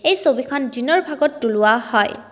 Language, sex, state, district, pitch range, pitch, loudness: Assamese, female, Assam, Kamrup Metropolitan, 215-295 Hz, 260 Hz, -18 LUFS